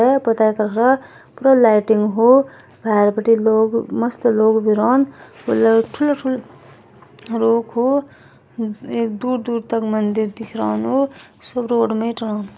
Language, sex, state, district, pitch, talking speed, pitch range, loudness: Hindi, female, Uttarakhand, Tehri Garhwal, 230 Hz, 90 wpm, 220-250 Hz, -17 LUFS